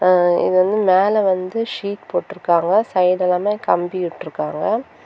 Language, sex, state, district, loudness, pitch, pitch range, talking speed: Tamil, female, Tamil Nadu, Kanyakumari, -18 LUFS, 185 Hz, 180-205 Hz, 105 wpm